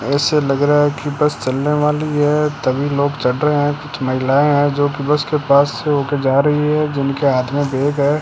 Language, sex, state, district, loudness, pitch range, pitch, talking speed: Hindi, male, Rajasthan, Bikaner, -16 LUFS, 140-150 Hz, 145 Hz, 225 wpm